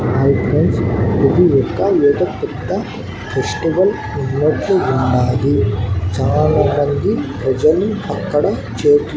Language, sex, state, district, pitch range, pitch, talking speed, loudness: Telugu, male, Andhra Pradesh, Annamaya, 115-150 Hz, 135 Hz, 70 wpm, -16 LUFS